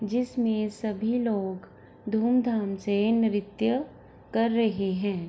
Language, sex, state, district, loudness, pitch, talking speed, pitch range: Hindi, female, Bihar, Gopalganj, -27 LUFS, 220 Hz, 135 wpm, 205-230 Hz